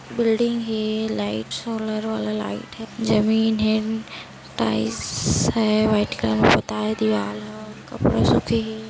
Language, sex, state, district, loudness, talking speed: Hindi, male, Chhattisgarh, Kabirdham, -22 LUFS, 140 wpm